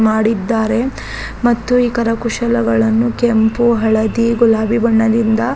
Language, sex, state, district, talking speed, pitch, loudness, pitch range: Kannada, female, Karnataka, Raichur, 95 wpm, 230 Hz, -14 LUFS, 220-235 Hz